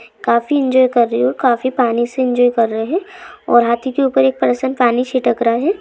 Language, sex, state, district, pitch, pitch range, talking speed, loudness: Hindi, female, Jharkhand, Sahebganj, 245 Hz, 230-260 Hz, 250 wpm, -15 LUFS